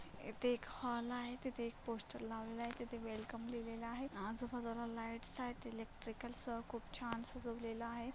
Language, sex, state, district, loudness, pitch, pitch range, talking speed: Marathi, female, Maharashtra, Solapur, -45 LUFS, 235 Hz, 230-245 Hz, 160 wpm